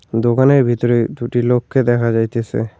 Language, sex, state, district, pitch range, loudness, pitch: Bengali, male, West Bengal, Cooch Behar, 115-120 Hz, -16 LUFS, 120 Hz